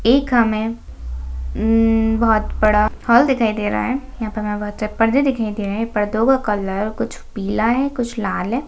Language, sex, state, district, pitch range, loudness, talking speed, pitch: Hindi, female, Bihar, Gaya, 210-235 Hz, -18 LUFS, 200 wpm, 220 Hz